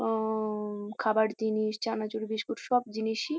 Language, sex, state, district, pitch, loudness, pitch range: Bengali, female, West Bengal, Kolkata, 220 Hz, -31 LUFS, 215-220 Hz